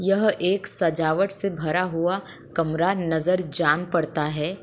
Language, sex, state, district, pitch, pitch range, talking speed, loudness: Hindi, female, Uttar Pradesh, Budaun, 175 Hz, 160-195 Hz, 140 wpm, -23 LUFS